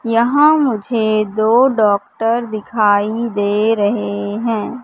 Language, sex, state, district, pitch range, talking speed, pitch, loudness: Hindi, female, Madhya Pradesh, Katni, 210-235 Hz, 100 wpm, 220 Hz, -15 LUFS